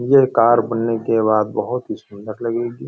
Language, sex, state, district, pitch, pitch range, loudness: Hindi, male, Uttar Pradesh, Hamirpur, 115 Hz, 110-120 Hz, -18 LUFS